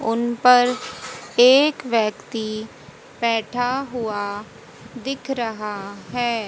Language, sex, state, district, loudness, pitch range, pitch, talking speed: Hindi, female, Haryana, Jhajjar, -21 LUFS, 215-250 Hz, 235 Hz, 85 wpm